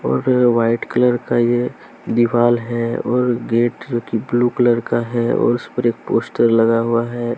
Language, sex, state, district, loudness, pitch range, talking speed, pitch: Hindi, male, Jharkhand, Deoghar, -17 LUFS, 115-120 Hz, 195 wpm, 120 Hz